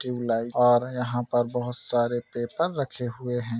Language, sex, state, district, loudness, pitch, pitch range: Hindi, male, Bihar, Gaya, -26 LUFS, 120 Hz, 120-125 Hz